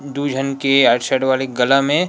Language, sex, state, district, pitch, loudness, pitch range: Chhattisgarhi, male, Chhattisgarh, Rajnandgaon, 135 Hz, -16 LUFS, 135-140 Hz